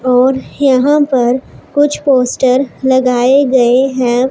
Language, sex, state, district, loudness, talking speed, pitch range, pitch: Hindi, female, Punjab, Pathankot, -12 LUFS, 110 wpm, 250-270 Hz, 260 Hz